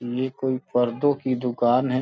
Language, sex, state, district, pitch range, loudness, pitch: Hindi, male, Uttar Pradesh, Gorakhpur, 125-130 Hz, -23 LUFS, 130 Hz